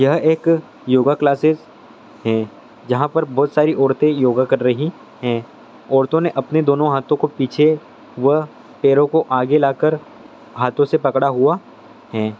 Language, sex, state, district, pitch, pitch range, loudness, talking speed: Hindi, male, Andhra Pradesh, Guntur, 140 Hz, 130-155 Hz, -17 LUFS, 155 wpm